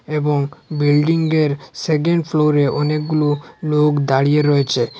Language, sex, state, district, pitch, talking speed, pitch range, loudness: Bengali, male, Assam, Hailakandi, 150 Hz, 95 wpm, 145-155 Hz, -17 LUFS